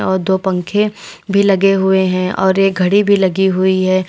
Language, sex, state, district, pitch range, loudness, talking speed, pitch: Hindi, female, Uttar Pradesh, Lalitpur, 185-195 Hz, -14 LUFS, 205 wpm, 190 Hz